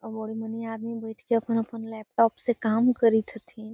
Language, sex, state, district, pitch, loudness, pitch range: Magahi, female, Bihar, Gaya, 225 Hz, -26 LUFS, 220-230 Hz